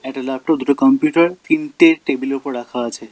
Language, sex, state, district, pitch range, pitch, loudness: Bengali, male, West Bengal, Alipurduar, 130-175 Hz, 140 Hz, -17 LUFS